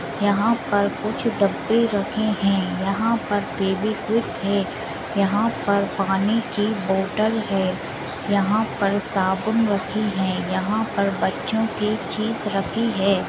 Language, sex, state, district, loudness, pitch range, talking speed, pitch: Hindi, female, Uttar Pradesh, Etah, -22 LUFS, 195-220 Hz, 125 wpm, 205 Hz